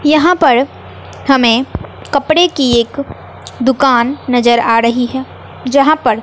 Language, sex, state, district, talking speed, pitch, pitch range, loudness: Hindi, female, Bihar, West Champaran, 125 wpm, 265 Hz, 240-285 Hz, -12 LUFS